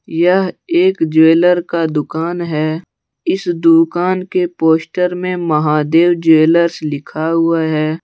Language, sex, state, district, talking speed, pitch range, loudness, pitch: Hindi, male, Jharkhand, Deoghar, 120 wpm, 160-180 Hz, -14 LUFS, 165 Hz